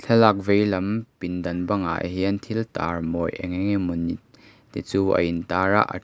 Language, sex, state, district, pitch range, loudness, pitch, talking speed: Mizo, male, Mizoram, Aizawl, 90-100 Hz, -24 LUFS, 95 Hz, 170 wpm